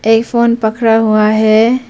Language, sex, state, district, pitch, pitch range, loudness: Hindi, female, Arunachal Pradesh, Papum Pare, 225 Hz, 220-235 Hz, -11 LUFS